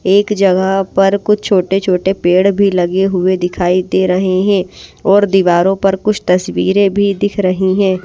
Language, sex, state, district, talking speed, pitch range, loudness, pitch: Hindi, female, Odisha, Malkangiri, 170 wpm, 185-200 Hz, -13 LUFS, 190 Hz